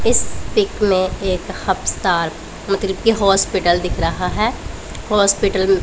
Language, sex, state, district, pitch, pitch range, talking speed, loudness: Hindi, female, Punjab, Pathankot, 195 Hz, 190-200 Hz, 135 wpm, -18 LUFS